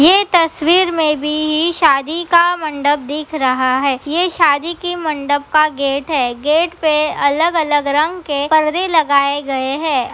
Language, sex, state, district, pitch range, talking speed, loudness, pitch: Hindi, female, Bihar, Begusarai, 285-330 Hz, 160 wpm, -15 LUFS, 305 Hz